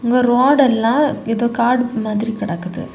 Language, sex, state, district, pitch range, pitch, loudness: Tamil, female, Tamil Nadu, Kanyakumari, 225-250 Hz, 235 Hz, -16 LUFS